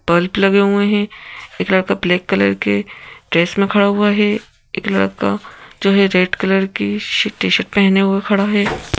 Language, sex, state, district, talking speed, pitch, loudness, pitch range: Hindi, female, Madhya Pradesh, Bhopal, 175 wpm, 195 Hz, -16 LUFS, 170-205 Hz